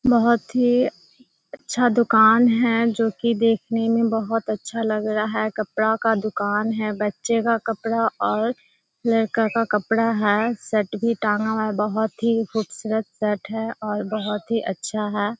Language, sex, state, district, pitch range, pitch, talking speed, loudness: Hindi, female, Bihar, Kishanganj, 215-230 Hz, 225 Hz, 165 wpm, -22 LUFS